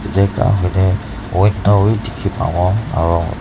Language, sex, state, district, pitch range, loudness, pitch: Nagamese, male, Nagaland, Dimapur, 90-105 Hz, -16 LUFS, 100 Hz